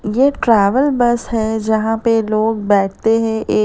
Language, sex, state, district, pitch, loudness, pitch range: Hindi, female, Uttar Pradesh, Lalitpur, 225 Hz, -15 LUFS, 215-235 Hz